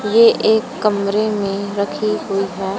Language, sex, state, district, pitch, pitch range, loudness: Hindi, female, Haryana, Charkhi Dadri, 205 Hz, 195-215 Hz, -17 LUFS